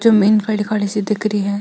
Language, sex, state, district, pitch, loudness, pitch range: Marwari, female, Rajasthan, Nagaur, 210 Hz, -17 LUFS, 205-215 Hz